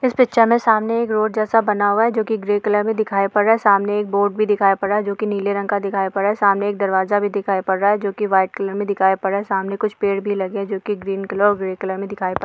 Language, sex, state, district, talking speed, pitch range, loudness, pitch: Hindi, female, Jharkhand, Sahebganj, 320 wpm, 195-210 Hz, -19 LUFS, 205 Hz